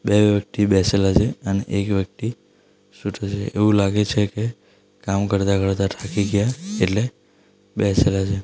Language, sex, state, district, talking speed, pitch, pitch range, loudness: Gujarati, male, Gujarat, Valsad, 150 wpm, 100 Hz, 100-105 Hz, -21 LUFS